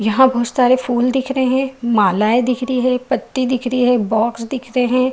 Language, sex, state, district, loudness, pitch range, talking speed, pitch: Hindi, female, Bihar, Saharsa, -16 LUFS, 240-260 Hz, 220 wpm, 250 Hz